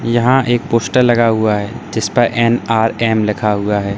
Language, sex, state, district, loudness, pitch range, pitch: Hindi, male, Uttar Pradesh, Lalitpur, -14 LUFS, 105-120 Hz, 115 Hz